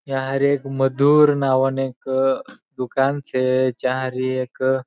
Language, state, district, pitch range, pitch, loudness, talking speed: Bhili, Maharashtra, Dhule, 130-140 Hz, 135 Hz, -20 LUFS, 150 wpm